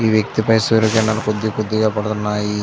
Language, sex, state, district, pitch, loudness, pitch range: Telugu, male, Andhra Pradesh, Chittoor, 110 Hz, -17 LUFS, 105-110 Hz